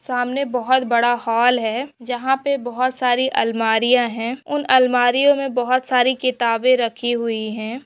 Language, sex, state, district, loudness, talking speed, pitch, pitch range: Hindi, female, Maharashtra, Pune, -19 LUFS, 150 wpm, 245 Hz, 235-260 Hz